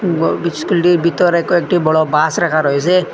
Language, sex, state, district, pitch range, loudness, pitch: Bengali, male, Assam, Hailakandi, 155-175 Hz, -14 LUFS, 170 Hz